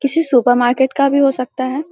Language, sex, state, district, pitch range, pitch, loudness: Hindi, female, Bihar, Samastipur, 250-280 Hz, 265 Hz, -15 LUFS